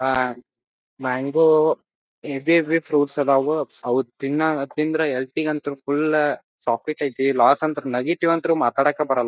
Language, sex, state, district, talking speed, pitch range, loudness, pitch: Kannada, male, Karnataka, Dharwad, 105 wpm, 135-155 Hz, -21 LUFS, 145 Hz